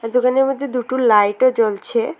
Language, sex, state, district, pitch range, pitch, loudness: Bengali, female, Tripura, West Tripura, 225-260 Hz, 250 Hz, -17 LUFS